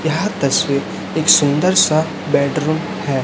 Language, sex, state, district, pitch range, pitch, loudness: Hindi, male, Chhattisgarh, Raipur, 140-160 Hz, 155 Hz, -16 LUFS